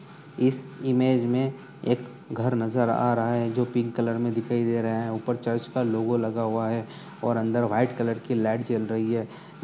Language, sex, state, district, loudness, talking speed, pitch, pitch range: Hindi, male, Uttar Pradesh, Budaun, -26 LUFS, 205 wpm, 120 Hz, 115-125 Hz